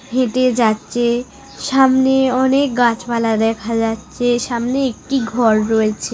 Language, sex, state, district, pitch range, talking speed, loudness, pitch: Bengali, female, West Bengal, North 24 Parganas, 225-260 Hz, 105 wpm, -16 LUFS, 240 Hz